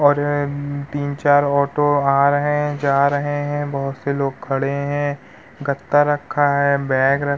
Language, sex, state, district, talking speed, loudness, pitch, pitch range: Hindi, male, Uttar Pradesh, Muzaffarnagar, 160 wpm, -19 LUFS, 145 Hz, 140-145 Hz